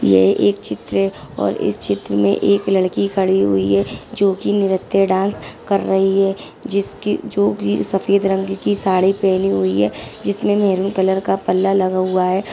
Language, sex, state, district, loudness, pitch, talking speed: Hindi, female, Uttarakhand, Tehri Garhwal, -17 LUFS, 190 Hz, 180 wpm